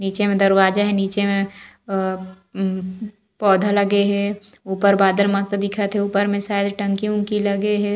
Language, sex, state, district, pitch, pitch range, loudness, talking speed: Chhattisgarhi, female, Chhattisgarh, Raigarh, 200 Hz, 195-205 Hz, -19 LUFS, 175 wpm